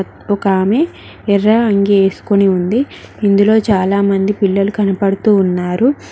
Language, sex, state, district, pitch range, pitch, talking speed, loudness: Telugu, female, Telangana, Mahabubabad, 195-210 Hz, 200 Hz, 110 wpm, -14 LUFS